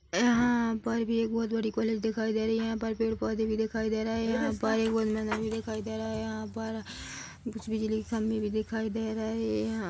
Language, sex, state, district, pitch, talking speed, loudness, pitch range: Hindi, female, Chhattisgarh, Bilaspur, 220 Hz, 240 wpm, -31 LUFS, 220-225 Hz